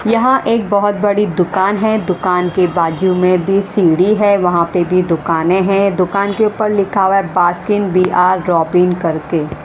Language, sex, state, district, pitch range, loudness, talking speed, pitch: Hindi, female, Haryana, Rohtak, 180-205 Hz, -14 LUFS, 185 wpm, 185 Hz